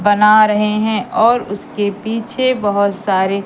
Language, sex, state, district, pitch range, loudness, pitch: Hindi, female, Madhya Pradesh, Katni, 200-220 Hz, -15 LUFS, 210 Hz